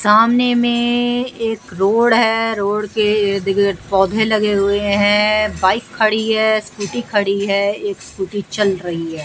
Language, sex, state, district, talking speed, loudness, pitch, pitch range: Hindi, female, Maharashtra, Washim, 150 wpm, -16 LUFS, 210 Hz, 200-225 Hz